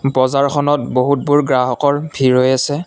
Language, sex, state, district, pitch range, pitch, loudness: Assamese, male, Assam, Kamrup Metropolitan, 130-145 Hz, 140 Hz, -15 LUFS